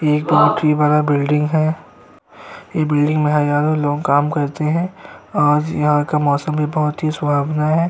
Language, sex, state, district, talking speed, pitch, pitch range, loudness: Hindi, male, Uttar Pradesh, Jyotiba Phule Nagar, 165 wpm, 150 Hz, 150-155 Hz, -17 LUFS